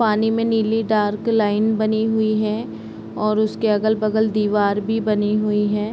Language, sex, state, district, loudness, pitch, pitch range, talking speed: Hindi, female, Bihar, East Champaran, -19 LUFS, 215 Hz, 210-220 Hz, 160 wpm